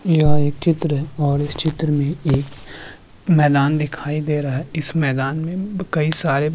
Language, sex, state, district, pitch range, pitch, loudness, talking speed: Hindi, male, Uttarakhand, Tehri Garhwal, 145-160 Hz, 150 Hz, -19 LUFS, 195 wpm